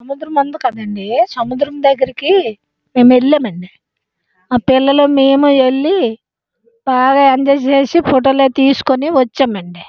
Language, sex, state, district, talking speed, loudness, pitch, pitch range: Telugu, female, Andhra Pradesh, Srikakulam, 85 wpm, -12 LUFS, 270 Hz, 245-280 Hz